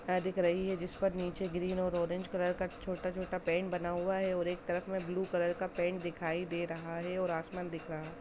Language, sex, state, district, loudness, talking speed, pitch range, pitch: Hindi, female, Bihar, Samastipur, -36 LUFS, 235 wpm, 175-185 Hz, 180 Hz